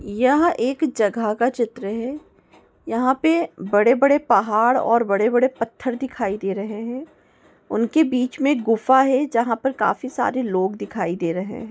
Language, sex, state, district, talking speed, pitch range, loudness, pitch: Hindi, female, Goa, North and South Goa, 160 wpm, 215-260 Hz, -20 LUFS, 240 Hz